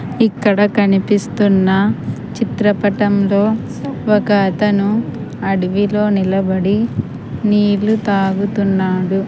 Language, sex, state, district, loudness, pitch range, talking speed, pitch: Telugu, female, Andhra Pradesh, Sri Satya Sai, -15 LUFS, 195-210 Hz, 60 wpm, 205 Hz